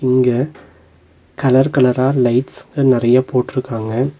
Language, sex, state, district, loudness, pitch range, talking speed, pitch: Tamil, male, Tamil Nadu, Nilgiris, -16 LUFS, 115-130 Hz, 85 wpm, 125 Hz